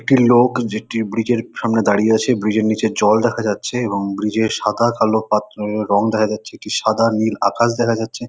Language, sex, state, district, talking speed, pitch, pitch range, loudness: Bengali, male, West Bengal, Kolkata, 210 wpm, 110 Hz, 105-120 Hz, -17 LUFS